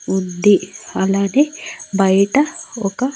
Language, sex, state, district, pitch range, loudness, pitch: Telugu, female, Andhra Pradesh, Annamaya, 195-270 Hz, -17 LUFS, 200 Hz